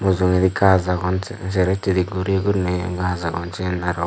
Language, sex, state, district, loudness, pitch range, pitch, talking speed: Chakma, male, Tripura, Dhalai, -20 LUFS, 90-95 Hz, 90 Hz, 175 wpm